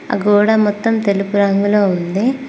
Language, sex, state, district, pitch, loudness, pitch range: Telugu, female, Telangana, Mahabubabad, 205 Hz, -15 LUFS, 200-220 Hz